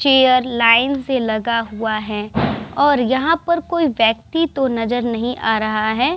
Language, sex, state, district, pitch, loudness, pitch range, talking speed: Hindi, female, Bihar, Vaishali, 245 Hz, -17 LUFS, 225-275 Hz, 175 wpm